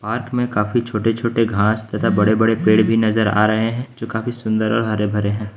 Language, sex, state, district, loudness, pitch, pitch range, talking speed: Hindi, male, Uttar Pradesh, Lucknow, -18 LUFS, 110 Hz, 105-115 Hz, 205 wpm